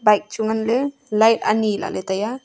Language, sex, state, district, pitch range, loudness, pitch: Wancho, female, Arunachal Pradesh, Longding, 210-230 Hz, -20 LUFS, 220 Hz